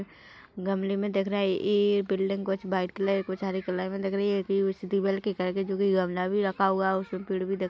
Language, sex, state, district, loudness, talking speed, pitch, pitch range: Hindi, female, Chhattisgarh, Rajnandgaon, -28 LUFS, 210 wpm, 195 Hz, 190-195 Hz